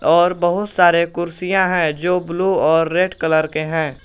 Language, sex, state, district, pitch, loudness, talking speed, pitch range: Hindi, male, Jharkhand, Garhwa, 175 Hz, -17 LUFS, 175 wpm, 160-180 Hz